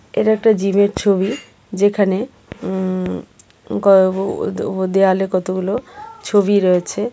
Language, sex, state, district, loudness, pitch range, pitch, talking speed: Bengali, female, Tripura, West Tripura, -17 LUFS, 185-205 Hz, 195 Hz, 110 wpm